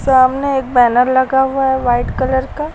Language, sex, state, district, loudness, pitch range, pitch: Hindi, female, Uttar Pradesh, Lucknow, -14 LUFS, 255-265 Hz, 260 Hz